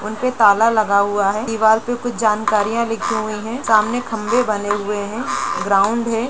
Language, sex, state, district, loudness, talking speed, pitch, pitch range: Hindi, female, Uttar Pradesh, Jalaun, -18 LUFS, 190 wpm, 215 Hz, 205-230 Hz